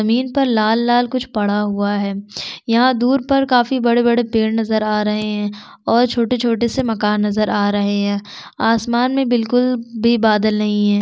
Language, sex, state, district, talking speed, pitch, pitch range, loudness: Hindi, female, Chhattisgarh, Sukma, 200 wpm, 225 Hz, 210-245 Hz, -17 LUFS